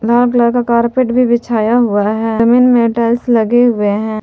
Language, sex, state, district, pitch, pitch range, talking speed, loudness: Hindi, female, Jharkhand, Palamu, 235 Hz, 225-245 Hz, 200 wpm, -12 LUFS